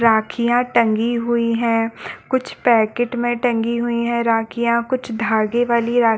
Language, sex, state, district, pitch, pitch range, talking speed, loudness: Hindi, female, Chhattisgarh, Balrampur, 235 Hz, 225-240 Hz, 145 wpm, -19 LUFS